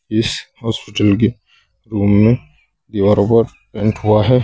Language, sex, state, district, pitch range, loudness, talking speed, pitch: Hindi, male, Uttar Pradesh, Saharanpur, 105-115 Hz, -16 LUFS, 135 wpm, 110 Hz